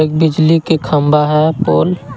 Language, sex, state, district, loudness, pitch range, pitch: Hindi, male, Jharkhand, Garhwa, -12 LUFS, 150-160 Hz, 155 Hz